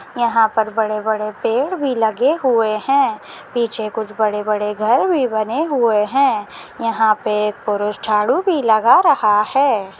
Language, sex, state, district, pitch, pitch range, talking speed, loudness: Hindi, female, Maharashtra, Dhule, 220 Hz, 215-255 Hz, 155 wpm, -17 LUFS